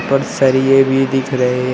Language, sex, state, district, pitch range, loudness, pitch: Hindi, male, Uttar Pradesh, Shamli, 130-135 Hz, -14 LUFS, 135 Hz